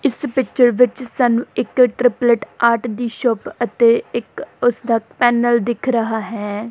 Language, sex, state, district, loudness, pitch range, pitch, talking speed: Punjabi, female, Punjab, Kapurthala, -17 LUFS, 230-245 Hz, 240 Hz, 145 wpm